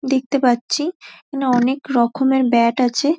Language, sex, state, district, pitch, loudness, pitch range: Bengali, female, West Bengal, Dakshin Dinajpur, 265 Hz, -18 LUFS, 245-280 Hz